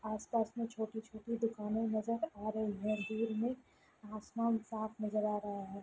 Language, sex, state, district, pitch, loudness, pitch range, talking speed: Hindi, female, Bihar, Lakhisarai, 220 Hz, -38 LUFS, 215-225 Hz, 165 wpm